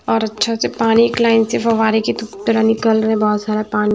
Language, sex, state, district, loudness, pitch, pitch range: Hindi, female, Maharashtra, Washim, -16 LUFS, 220 Hz, 215-225 Hz